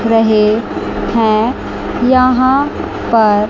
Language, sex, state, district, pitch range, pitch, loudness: Hindi, female, Chandigarh, Chandigarh, 215-255 Hz, 225 Hz, -13 LUFS